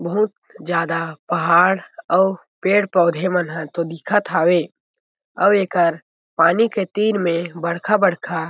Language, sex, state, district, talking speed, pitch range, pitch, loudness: Chhattisgarhi, male, Chhattisgarh, Jashpur, 115 wpm, 170-195 Hz, 175 Hz, -19 LUFS